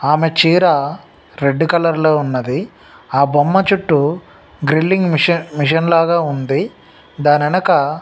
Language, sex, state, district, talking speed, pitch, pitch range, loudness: Telugu, male, Telangana, Nalgonda, 125 wpm, 155 Hz, 145-170 Hz, -15 LUFS